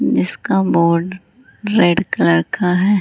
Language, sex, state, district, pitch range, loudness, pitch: Hindi, female, Bihar, Gaya, 170-205 Hz, -16 LUFS, 185 Hz